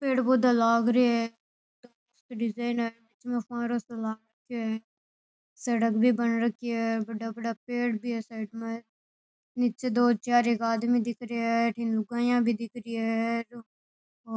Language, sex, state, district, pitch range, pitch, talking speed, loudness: Rajasthani, female, Rajasthan, Nagaur, 230-240 Hz, 230 Hz, 140 wpm, -28 LUFS